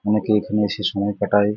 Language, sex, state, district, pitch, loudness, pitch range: Bengali, male, West Bengal, Jhargram, 105 Hz, -21 LUFS, 100-105 Hz